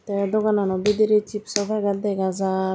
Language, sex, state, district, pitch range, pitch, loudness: Chakma, female, Tripura, Dhalai, 195-210 Hz, 205 Hz, -22 LUFS